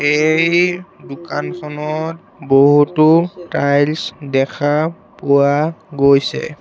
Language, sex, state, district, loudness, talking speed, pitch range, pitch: Assamese, male, Assam, Sonitpur, -15 LUFS, 65 wpm, 140-160 Hz, 150 Hz